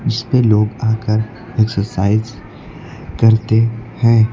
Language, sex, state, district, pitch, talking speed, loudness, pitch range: Hindi, male, Uttar Pradesh, Lucknow, 110 Hz, 85 wpm, -16 LUFS, 110-120 Hz